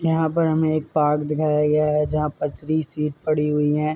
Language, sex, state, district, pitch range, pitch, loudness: Hindi, male, Uttar Pradesh, Muzaffarnagar, 150-155 Hz, 150 Hz, -21 LUFS